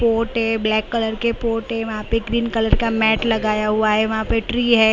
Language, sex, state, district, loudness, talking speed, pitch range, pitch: Hindi, female, Maharashtra, Mumbai Suburban, -19 LUFS, 245 wpm, 220-230 Hz, 225 Hz